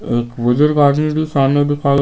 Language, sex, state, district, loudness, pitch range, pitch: Hindi, male, Bihar, Patna, -15 LUFS, 135-150 Hz, 145 Hz